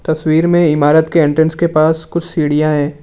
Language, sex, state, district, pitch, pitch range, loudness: Hindi, male, Assam, Kamrup Metropolitan, 160 Hz, 155-165 Hz, -13 LUFS